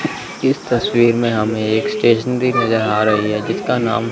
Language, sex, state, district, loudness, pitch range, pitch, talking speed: Hindi, male, Chandigarh, Chandigarh, -17 LUFS, 110-120 Hz, 115 Hz, 175 wpm